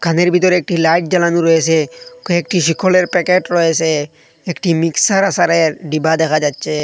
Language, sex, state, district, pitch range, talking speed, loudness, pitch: Bengali, male, Assam, Hailakandi, 160-180 Hz, 140 wpm, -14 LUFS, 170 Hz